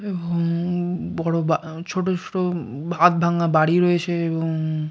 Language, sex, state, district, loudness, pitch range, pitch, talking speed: Bengali, male, West Bengal, Jalpaiguri, -22 LUFS, 165-175 Hz, 170 Hz, 135 wpm